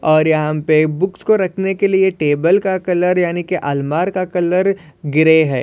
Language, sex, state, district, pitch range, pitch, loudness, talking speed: Hindi, male, Maharashtra, Solapur, 155-190 Hz, 175 Hz, -16 LUFS, 190 wpm